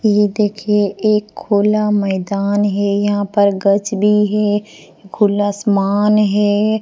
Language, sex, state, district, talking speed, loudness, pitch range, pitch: Hindi, female, Punjab, Pathankot, 125 wpm, -15 LUFS, 200-210 Hz, 205 Hz